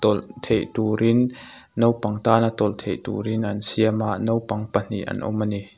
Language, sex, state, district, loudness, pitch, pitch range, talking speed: Mizo, male, Mizoram, Aizawl, -22 LUFS, 110 Hz, 105-115 Hz, 175 wpm